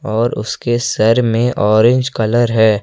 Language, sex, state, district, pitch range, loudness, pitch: Hindi, male, Jharkhand, Ranchi, 110-120 Hz, -14 LUFS, 115 Hz